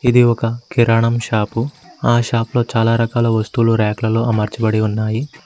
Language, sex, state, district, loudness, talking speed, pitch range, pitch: Telugu, male, Telangana, Mahabubabad, -17 LUFS, 145 wpm, 110-120 Hz, 115 Hz